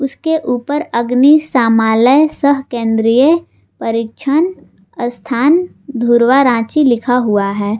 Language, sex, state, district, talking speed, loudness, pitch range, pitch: Hindi, female, Jharkhand, Garhwa, 85 wpm, -13 LUFS, 230-290 Hz, 250 Hz